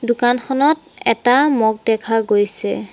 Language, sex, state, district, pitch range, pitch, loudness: Assamese, female, Assam, Sonitpur, 220-265 Hz, 240 Hz, -16 LUFS